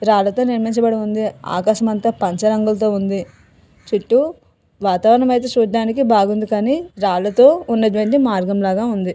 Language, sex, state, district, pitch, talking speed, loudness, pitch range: Telugu, female, Andhra Pradesh, Visakhapatnam, 215 Hz, 120 wpm, -17 LUFS, 200-235 Hz